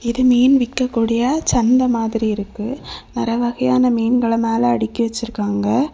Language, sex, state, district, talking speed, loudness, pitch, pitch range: Tamil, female, Tamil Nadu, Kanyakumari, 120 wpm, -17 LUFS, 235 Hz, 225-250 Hz